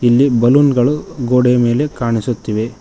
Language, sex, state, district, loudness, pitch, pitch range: Kannada, male, Karnataka, Koppal, -14 LUFS, 125 Hz, 120-140 Hz